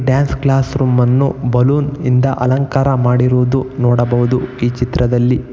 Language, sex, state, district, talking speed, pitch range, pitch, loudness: Kannada, male, Karnataka, Bangalore, 120 wpm, 125-135 Hz, 125 Hz, -14 LUFS